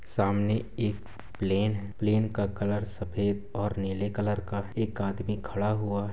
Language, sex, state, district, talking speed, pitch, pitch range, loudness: Hindi, male, Chhattisgarh, Bilaspur, 155 wpm, 105 Hz, 100-105 Hz, -30 LUFS